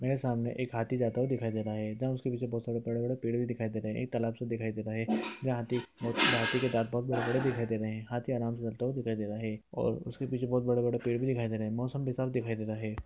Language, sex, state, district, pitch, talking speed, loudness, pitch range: Hindi, male, Bihar, East Champaran, 120 Hz, 305 wpm, -33 LUFS, 115-125 Hz